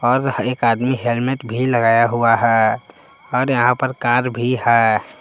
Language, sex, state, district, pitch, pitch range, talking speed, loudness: Hindi, male, Jharkhand, Palamu, 120 Hz, 115-125 Hz, 160 wpm, -17 LUFS